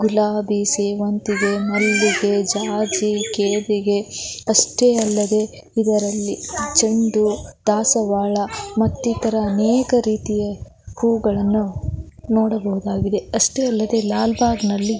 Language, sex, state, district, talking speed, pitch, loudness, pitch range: Kannada, female, Karnataka, Belgaum, 80 wpm, 210 Hz, -19 LUFS, 205-220 Hz